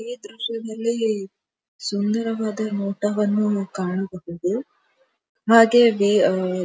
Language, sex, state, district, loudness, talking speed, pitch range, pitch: Kannada, female, Karnataka, Dharwad, -21 LUFS, 70 wpm, 200-230 Hz, 215 Hz